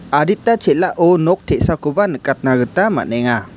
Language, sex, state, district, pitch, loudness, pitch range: Garo, male, Meghalaya, West Garo Hills, 150 Hz, -15 LUFS, 130-185 Hz